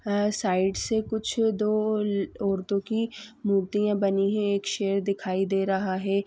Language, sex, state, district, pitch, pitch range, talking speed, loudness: Hindi, female, Bihar, Madhepura, 200 Hz, 195-215 Hz, 165 wpm, -26 LUFS